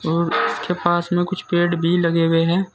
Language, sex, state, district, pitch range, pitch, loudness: Hindi, male, Uttar Pradesh, Saharanpur, 165-180 Hz, 175 Hz, -19 LUFS